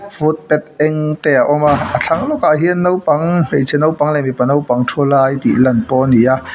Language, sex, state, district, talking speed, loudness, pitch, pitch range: Mizo, male, Mizoram, Aizawl, 220 wpm, -14 LUFS, 150 Hz, 130-155 Hz